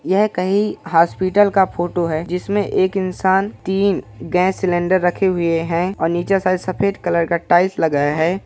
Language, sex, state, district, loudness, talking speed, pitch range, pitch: Hindi, male, Bihar, Purnia, -18 LUFS, 170 wpm, 170-195 Hz, 185 Hz